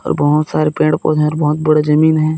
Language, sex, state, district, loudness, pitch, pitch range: Hindi, male, Chhattisgarh, Bilaspur, -14 LUFS, 155 Hz, 150-155 Hz